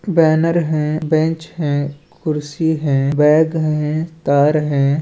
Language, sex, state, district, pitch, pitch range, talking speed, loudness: Chhattisgarhi, male, Chhattisgarh, Balrampur, 155 Hz, 145-160 Hz, 120 wpm, -17 LUFS